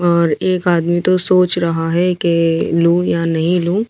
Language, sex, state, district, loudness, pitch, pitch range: Hindi, female, Delhi, New Delhi, -15 LUFS, 175 Hz, 170-180 Hz